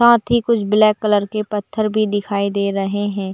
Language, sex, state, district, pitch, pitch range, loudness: Hindi, female, Chhattisgarh, Bilaspur, 210 Hz, 200-215 Hz, -18 LUFS